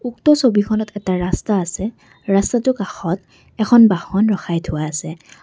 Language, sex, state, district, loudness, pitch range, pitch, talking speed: Assamese, female, Assam, Kamrup Metropolitan, -18 LUFS, 170-220 Hz, 200 Hz, 130 wpm